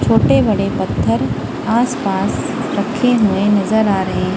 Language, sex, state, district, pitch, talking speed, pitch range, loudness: Hindi, female, Punjab, Kapurthala, 200 Hz, 140 wpm, 130-220 Hz, -16 LUFS